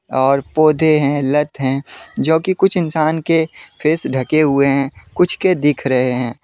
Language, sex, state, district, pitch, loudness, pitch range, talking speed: Hindi, male, Jharkhand, Deoghar, 150 Hz, -16 LUFS, 135-160 Hz, 175 wpm